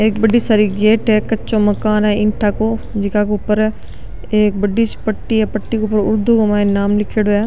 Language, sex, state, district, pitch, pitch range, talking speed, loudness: Rajasthani, male, Rajasthan, Nagaur, 215 Hz, 210-220 Hz, 200 wpm, -15 LUFS